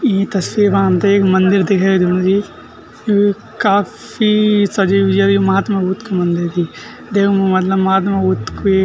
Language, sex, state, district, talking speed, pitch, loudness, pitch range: Garhwali, male, Uttarakhand, Tehri Garhwal, 155 wpm, 195 Hz, -14 LUFS, 190-200 Hz